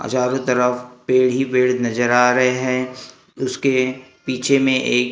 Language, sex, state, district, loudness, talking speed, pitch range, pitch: Hindi, male, Maharashtra, Gondia, -18 LUFS, 150 wpm, 125-130 Hz, 125 Hz